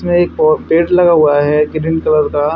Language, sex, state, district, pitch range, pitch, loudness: Hindi, male, Haryana, Charkhi Dadri, 150-175 Hz, 160 Hz, -12 LUFS